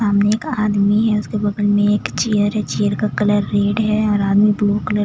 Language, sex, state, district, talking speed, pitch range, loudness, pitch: Hindi, female, Chhattisgarh, Jashpur, 235 wpm, 205-210 Hz, -17 LUFS, 205 Hz